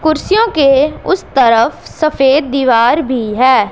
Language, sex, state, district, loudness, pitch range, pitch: Hindi, female, Punjab, Pathankot, -12 LUFS, 255-310 Hz, 275 Hz